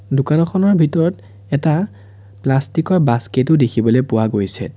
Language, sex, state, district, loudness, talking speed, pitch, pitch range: Assamese, male, Assam, Sonitpur, -16 LUFS, 115 wpm, 130 Hz, 105-160 Hz